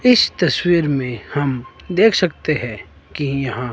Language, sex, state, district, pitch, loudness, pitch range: Hindi, male, Himachal Pradesh, Shimla, 140 Hz, -18 LUFS, 125-175 Hz